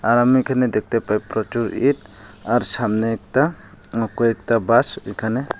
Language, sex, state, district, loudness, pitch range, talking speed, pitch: Bengali, male, Tripura, Unakoti, -20 LUFS, 110-125 Hz, 140 wpm, 115 Hz